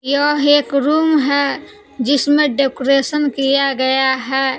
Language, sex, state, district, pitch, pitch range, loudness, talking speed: Hindi, female, Jharkhand, Palamu, 280 Hz, 270-290 Hz, -15 LUFS, 115 wpm